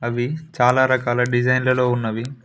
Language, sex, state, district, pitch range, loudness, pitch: Telugu, male, Telangana, Mahabubabad, 120-130 Hz, -19 LUFS, 125 Hz